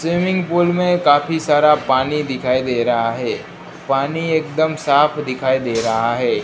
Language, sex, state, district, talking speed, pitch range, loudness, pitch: Hindi, female, Gujarat, Gandhinagar, 160 wpm, 130-160 Hz, -17 LUFS, 150 Hz